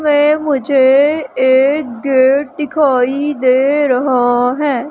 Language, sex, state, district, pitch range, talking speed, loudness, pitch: Hindi, female, Madhya Pradesh, Umaria, 260-295 Hz, 100 wpm, -13 LUFS, 275 Hz